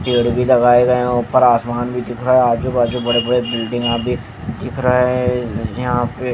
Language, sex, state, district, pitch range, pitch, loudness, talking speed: Hindi, male, Haryana, Jhajjar, 120-125 Hz, 120 Hz, -16 LUFS, 200 wpm